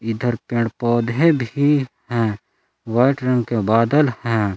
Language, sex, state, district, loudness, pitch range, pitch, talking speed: Hindi, male, Jharkhand, Palamu, -19 LUFS, 115-130 Hz, 120 Hz, 130 wpm